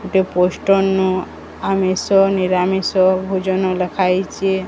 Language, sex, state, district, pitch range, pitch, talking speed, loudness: Odia, male, Odisha, Sambalpur, 185-195 Hz, 190 Hz, 100 wpm, -17 LUFS